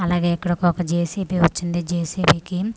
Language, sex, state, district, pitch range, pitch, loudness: Telugu, female, Andhra Pradesh, Manyam, 170-180 Hz, 175 Hz, -21 LUFS